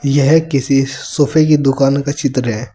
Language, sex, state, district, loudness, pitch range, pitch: Hindi, male, Uttar Pradesh, Saharanpur, -14 LUFS, 135-145 Hz, 140 Hz